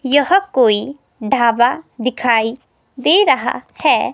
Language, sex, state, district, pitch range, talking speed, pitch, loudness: Hindi, female, Himachal Pradesh, Shimla, 235-280 Hz, 100 wpm, 255 Hz, -15 LUFS